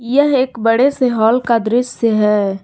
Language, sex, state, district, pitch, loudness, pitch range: Hindi, female, Jharkhand, Garhwa, 235 Hz, -14 LUFS, 220-255 Hz